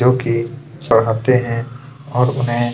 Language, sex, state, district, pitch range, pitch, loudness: Hindi, male, Chhattisgarh, Kabirdham, 115-130 Hz, 125 Hz, -17 LUFS